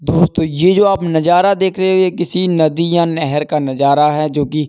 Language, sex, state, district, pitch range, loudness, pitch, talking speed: Hindi, male, Uttar Pradesh, Budaun, 150-180 Hz, -13 LUFS, 165 Hz, 245 wpm